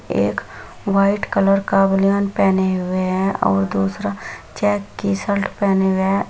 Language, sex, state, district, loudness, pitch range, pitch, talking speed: Hindi, female, Bihar, Samastipur, -19 LUFS, 185-195 Hz, 195 Hz, 160 wpm